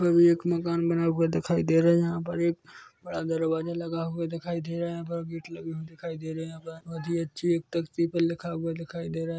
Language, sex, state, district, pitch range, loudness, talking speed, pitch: Hindi, male, Chhattisgarh, Korba, 165-170 Hz, -28 LUFS, 270 wpm, 165 Hz